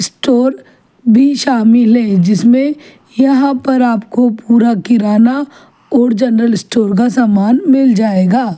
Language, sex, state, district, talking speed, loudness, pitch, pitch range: Hindi, female, Chhattisgarh, Kabirdham, 120 wpm, -11 LUFS, 240 Hz, 225-265 Hz